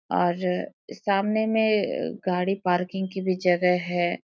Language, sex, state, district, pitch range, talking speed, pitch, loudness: Hindi, female, Jharkhand, Sahebganj, 180-200 Hz, 140 wpm, 185 Hz, -25 LUFS